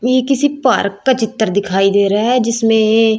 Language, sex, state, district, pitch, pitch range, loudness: Hindi, female, Chhattisgarh, Raipur, 225 Hz, 205-255 Hz, -14 LUFS